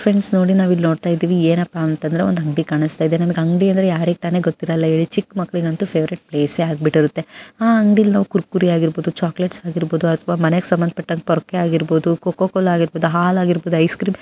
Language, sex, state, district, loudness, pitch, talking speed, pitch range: Kannada, female, Karnataka, Bijapur, -17 LUFS, 170 Hz, 115 wpm, 165-180 Hz